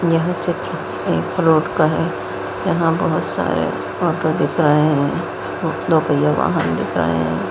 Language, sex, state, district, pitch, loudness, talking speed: Hindi, female, Chhattisgarh, Bastar, 150 Hz, -18 LUFS, 150 wpm